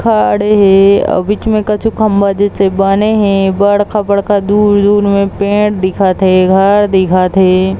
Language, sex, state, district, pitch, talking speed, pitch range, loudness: Chhattisgarhi, female, Chhattisgarh, Bilaspur, 200 Hz, 145 wpm, 190-205 Hz, -10 LUFS